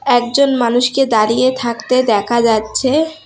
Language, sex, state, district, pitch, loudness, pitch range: Bengali, female, West Bengal, Alipurduar, 245 Hz, -14 LUFS, 235-265 Hz